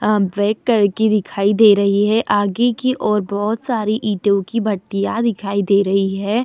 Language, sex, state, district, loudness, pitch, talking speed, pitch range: Hindi, female, Uttar Pradesh, Muzaffarnagar, -17 LUFS, 210 Hz, 175 wpm, 200-220 Hz